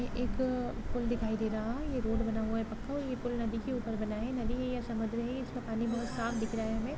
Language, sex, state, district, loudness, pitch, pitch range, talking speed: Hindi, female, Chhattisgarh, Raigarh, -35 LUFS, 235 Hz, 225-250 Hz, 290 wpm